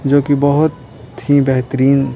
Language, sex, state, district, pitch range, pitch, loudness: Hindi, male, Bihar, Patna, 130-145 Hz, 140 Hz, -14 LUFS